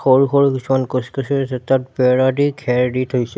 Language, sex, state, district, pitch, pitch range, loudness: Assamese, male, Assam, Sonitpur, 130 Hz, 125-135 Hz, -17 LUFS